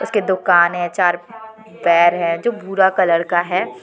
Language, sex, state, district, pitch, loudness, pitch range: Hindi, female, Jharkhand, Deoghar, 175 Hz, -16 LUFS, 175-195 Hz